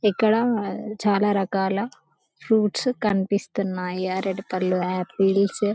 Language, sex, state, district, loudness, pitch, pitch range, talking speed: Telugu, female, Telangana, Karimnagar, -23 LUFS, 200 Hz, 190-210 Hz, 85 wpm